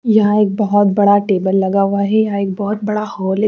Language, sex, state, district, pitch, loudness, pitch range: Hindi, female, Chandigarh, Chandigarh, 205 Hz, -15 LUFS, 195-210 Hz